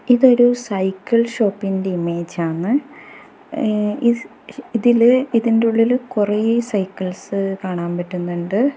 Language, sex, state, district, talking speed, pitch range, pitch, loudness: Malayalam, female, Kerala, Kasaragod, 95 wpm, 190-245 Hz, 220 Hz, -18 LUFS